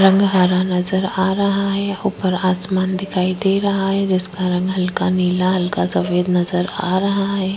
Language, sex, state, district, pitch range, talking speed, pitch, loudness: Hindi, female, Chhattisgarh, Korba, 180-195 Hz, 190 wpm, 185 Hz, -18 LUFS